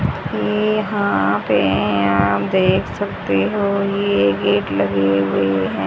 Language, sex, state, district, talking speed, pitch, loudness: Hindi, female, Haryana, Rohtak, 125 wpm, 100 Hz, -18 LUFS